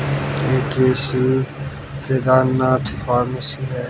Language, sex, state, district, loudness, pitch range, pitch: Hindi, male, Haryana, Jhajjar, -19 LUFS, 130-135 Hz, 130 Hz